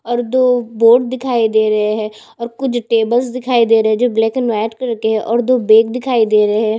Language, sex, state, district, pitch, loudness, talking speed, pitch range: Hindi, female, Chhattisgarh, Bastar, 230 Hz, -14 LUFS, 245 wpm, 220-245 Hz